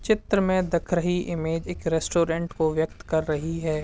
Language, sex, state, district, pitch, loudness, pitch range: Hindi, male, Uttar Pradesh, Hamirpur, 165 Hz, -25 LUFS, 160-175 Hz